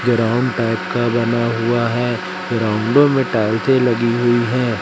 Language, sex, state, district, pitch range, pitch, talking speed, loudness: Hindi, female, Madhya Pradesh, Katni, 115-120 Hz, 120 Hz, 150 wpm, -17 LUFS